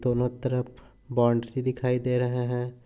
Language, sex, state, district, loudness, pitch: Hindi, male, Chhattisgarh, Korba, -27 LUFS, 125 Hz